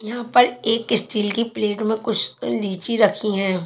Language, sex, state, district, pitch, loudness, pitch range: Hindi, female, Chhattisgarh, Raipur, 220 Hz, -21 LUFS, 205-230 Hz